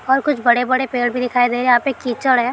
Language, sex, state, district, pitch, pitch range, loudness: Hindi, female, Bihar, Araria, 250 Hz, 245-260 Hz, -17 LUFS